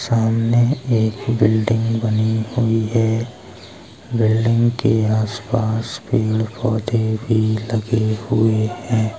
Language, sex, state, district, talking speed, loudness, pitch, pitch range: Hindi, male, Uttar Pradesh, Hamirpur, 105 wpm, -19 LUFS, 115 Hz, 110-115 Hz